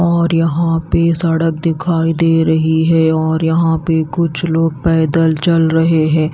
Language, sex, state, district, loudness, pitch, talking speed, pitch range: Hindi, female, Chhattisgarh, Raipur, -14 LUFS, 165 Hz, 160 wpm, 160-165 Hz